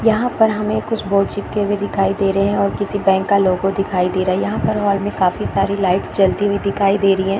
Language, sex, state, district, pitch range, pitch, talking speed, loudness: Hindi, female, Chhattisgarh, Bilaspur, 195-205 Hz, 200 Hz, 260 wpm, -17 LUFS